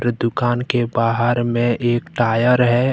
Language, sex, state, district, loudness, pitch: Hindi, male, Jharkhand, Deoghar, -18 LUFS, 120 Hz